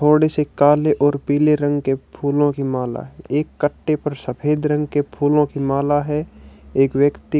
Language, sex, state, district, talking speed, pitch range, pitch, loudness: Hindi, male, Chhattisgarh, Raipur, 180 wpm, 140-150 Hz, 145 Hz, -19 LUFS